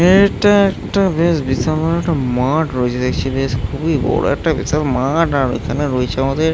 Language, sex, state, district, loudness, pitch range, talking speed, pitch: Bengali, male, West Bengal, Malda, -16 LUFS, 130-165 Hz, 185 wpm, 145 Hz